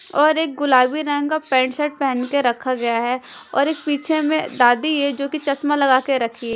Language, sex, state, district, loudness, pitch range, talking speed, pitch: Hindi, female, Punjab, Kapurthala, -19 LUFS, 255-295 Hz, 210 wpm, 280 Hz